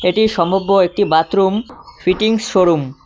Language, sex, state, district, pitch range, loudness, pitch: Bengali, male, West Bengal, Cooch Behar, 175-220 Hz, -15 LUFS, 195 Hz